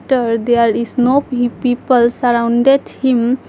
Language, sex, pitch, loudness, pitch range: English, female, 245 Hz, -14 LUFS, 235-260 Hz